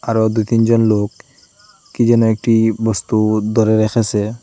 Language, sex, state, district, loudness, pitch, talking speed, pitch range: Bengali, male, Assam, Hailakandi, -15 LUFS, 110 Hz, 120 wpm, 110-115 Hz